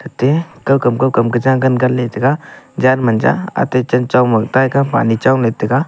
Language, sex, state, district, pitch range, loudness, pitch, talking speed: Wancho, male, Arunachal Pradesh, Longding, 120-135 Hz, -14 LUFS, 125 Hz, 145 wpm